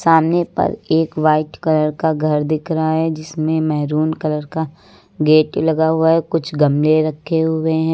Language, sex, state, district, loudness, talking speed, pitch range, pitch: Hindi, female, Uttar Pradesh, Lucknow, -17 LUFS, 175 wpm, 155-160 Hz, 160 Hz